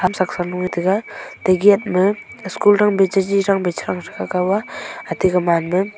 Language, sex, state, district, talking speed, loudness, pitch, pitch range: Wancho, female, Arunachal Pradesh, Longding, 180 wpm, -18 LUFS, 185 Hz, 180-200 Hz